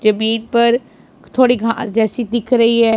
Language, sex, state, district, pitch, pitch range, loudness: Hindi, female, Punjab, Pathankot, 230 Hz, 225-240 Hz, -15 LUFS